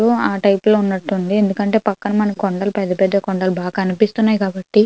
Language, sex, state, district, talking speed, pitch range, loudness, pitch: Telugu, female, Andhra Pradesh, Visakhapatnam, 185 wpm, 190-210 Hz, -17 LUFS, 200 Hz